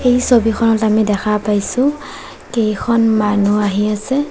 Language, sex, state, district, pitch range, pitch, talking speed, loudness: Assamese, female, Assam, Sonitpur, 210-245 Hz, 220 Hz, 125 wpm, -15 LUFS